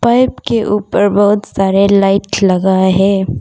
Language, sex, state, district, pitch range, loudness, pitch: Hindi, female, Arunachal Pradesh, Papum Pare, 195-205 Hz, -12 LUFS, 200 Hz